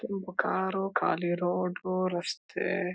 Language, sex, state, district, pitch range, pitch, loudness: Kannada, male, Karnataka, Mysore, 180-190 Hz, 185 Hz, -30 LUFS